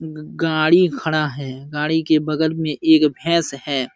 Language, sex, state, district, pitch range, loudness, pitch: Hindi, male, Uttar Pradesh, Jalaun, 150-160 Hz, -18 LUFS, 155 Hz